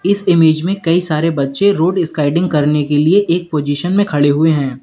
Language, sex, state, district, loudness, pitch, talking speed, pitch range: Hindi, male, Uttar Pradesh, Lalitpur, -14 LUFS, 160 Hz, 210 wpm, 150-180 Hz